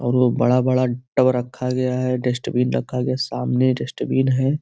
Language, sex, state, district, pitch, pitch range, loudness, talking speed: Hindi, male, Uttar Pradesh, Gorakhpur, 125 Hz, 125-130 Hz, -20 LUFS, 195 wpm